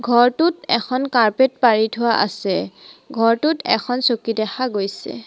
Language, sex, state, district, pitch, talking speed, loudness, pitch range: Assamese, female, Assam, Sonitpur, 235 Hz, 125 wpm, -18 LUFS, 220-255 Hz